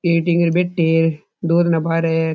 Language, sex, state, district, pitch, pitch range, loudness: Rajasthani, male, Rajasthan, Churu, 165 Hz, 165-170 Hz, -17 LUFS